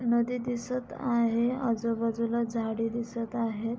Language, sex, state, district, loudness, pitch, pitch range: Marathi, female, Maharashtra, Pune, -30 LUFS, 235 Hz, 230-240 Hz